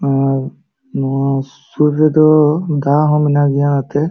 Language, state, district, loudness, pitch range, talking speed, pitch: Santali, Jharkhand, Sahebganj, -14 LUFS, 140-150 Hz, 145 wpm, 145 Hz